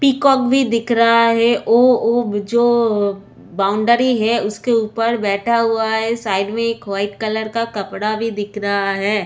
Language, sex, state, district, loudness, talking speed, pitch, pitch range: Hindi, female, Chhattisgarh, Sukma, -17 LUFS, 155 wpm, 225 Hz, 205-235 Hz